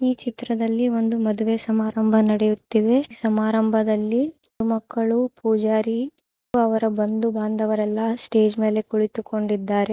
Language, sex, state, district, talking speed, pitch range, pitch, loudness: Kannada, female, Karnataka, Chamarajanagar, 95 wpm, 215-230 Hz, 220 Hz, -22 LUFS